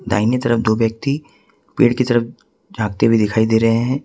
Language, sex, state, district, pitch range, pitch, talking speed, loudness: Hindi, male, Jharkhand, Ranchi, 110-120 Hz, 115 Hz, 190 wpm, -17 LUFS